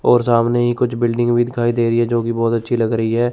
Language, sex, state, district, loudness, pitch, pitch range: Hindi, male, Chandigarh, Chandigarh, -17 LUFS, 120 Hz, 115-120 Hz